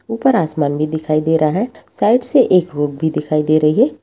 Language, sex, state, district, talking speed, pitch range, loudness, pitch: Hindi, female, Bihar, Samastipur, 225 wpm, 155-215 Hz, -16 LUFS, 155 Hz